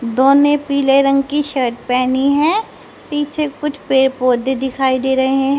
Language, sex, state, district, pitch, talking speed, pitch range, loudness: Hindi, female, Haryana, Charkhi Dadri, 270 Hz, 160 wpm, 265-290 Hz, -15 LUFS